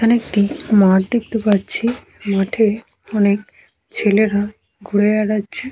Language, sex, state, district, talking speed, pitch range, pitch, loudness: Bengali, male, West Bengal, Paschim Medinipur, 115 wpm, 205-225 Hz, 210 Hz, -17 LUFS